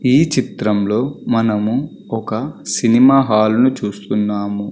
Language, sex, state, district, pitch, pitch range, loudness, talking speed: Telugu, male, Telangana, Karimnagar, 110 Hz, 105-125 Hz, -16 LUFS, 100 wpm